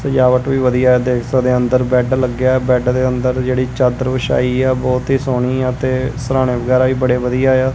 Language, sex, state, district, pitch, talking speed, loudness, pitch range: Punjabi, male, Punjab, Kapurthala, 130 Hz, 225 wpm, -15 LUFS, 125-130 Hz